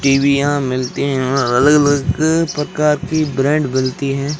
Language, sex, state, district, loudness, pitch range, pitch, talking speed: Hindi, male, Rajasthan, Jaisalmer, -15 LUFS, 135-150 Hz, 140 Hz, 150 wpm